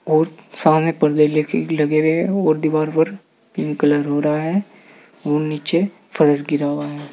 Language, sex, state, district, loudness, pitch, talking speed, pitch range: Hindi, male, Uttar Pradesh, Saharanpur, -18 LUFS, 155 Hz, 175 wpm, 150-165 Hz